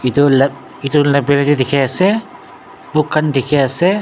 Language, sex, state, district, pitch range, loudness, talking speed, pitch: Nagamese, male, Nagaland, Dimapur, 135-155 Hz, -14 LUFS, 120 wpm, 145 Hz